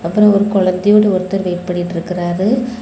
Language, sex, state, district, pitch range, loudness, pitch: Tamil, female, Tamil Nadu, Kanyakumari, 180-210 Hz, -15 LUFS, 190 Hz